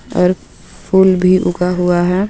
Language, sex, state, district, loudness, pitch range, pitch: Hindi, female, Jharkhand, Ranchi, -13 LUFS, 180-185 Hz, 180 Hz